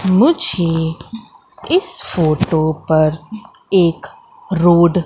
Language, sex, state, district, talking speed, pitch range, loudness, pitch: Hindi, female, Madhya Pradesh, Katni, 85 wpm, 160-220 Hz, -15 LUFS, 175 Hz